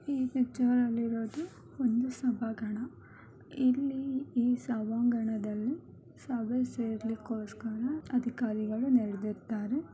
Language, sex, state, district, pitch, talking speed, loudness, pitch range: Kannada, male, Karnataka, Gulbarga, 240 Hz, 70 wpm, -32 LUFS, 225-255 Hz